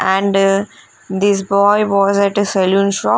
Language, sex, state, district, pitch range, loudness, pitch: English, female, Punjab, Fazilka, 195-200 Hz, -14 LUFS, 200 Hz